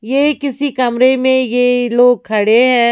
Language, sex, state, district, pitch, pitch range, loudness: Hindi, female, Maharashtra, Mumbai Suburban, 250 Hz, 240-260 Hz, -13 LUFS